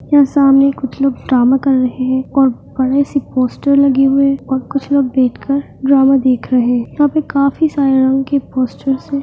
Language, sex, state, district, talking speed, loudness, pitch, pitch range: Hindi, female, Uttarakhand, Tehri Garhwal, 215 wpm, -14 LUFS, 270 Hz, 260-280 Hz